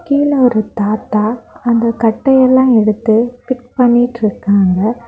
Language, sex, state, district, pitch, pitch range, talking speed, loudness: Tamil, female, Tamil Nadu, Kanyakumari, 235 Hz, 215-250 Hz, 95 wpm, -13 LUFS